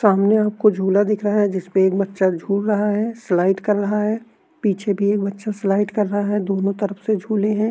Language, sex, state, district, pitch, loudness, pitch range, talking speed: Hindi, male, Uttar Pradesh, Jalaun, 205 Hz, -20 LUFS, 195-210 Hz, 235 wpm